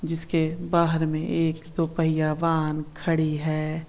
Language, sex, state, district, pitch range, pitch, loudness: Marwari, female, Rajasthan, Nagaur, 155-165 Hz, 160 Hz, -25 LUFS